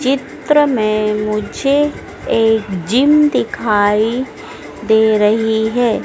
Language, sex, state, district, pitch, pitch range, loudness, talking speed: Hindi, female, Madhya Pradesh, Dhar, 220 Hz, 210-260 Hz, -14 LUFS, 90 wpm